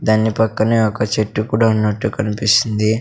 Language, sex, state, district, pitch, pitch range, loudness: Telugu, male, Andhra Pradesh, Sri Satya Sai, 110 Hz, 105-110 Hz, -17 LUFS